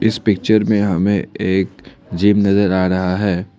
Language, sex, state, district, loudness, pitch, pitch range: Hindi, male, Assam, Kamrup Metropolitan, -16 LUFS, 100 Hz, 95-105 Hz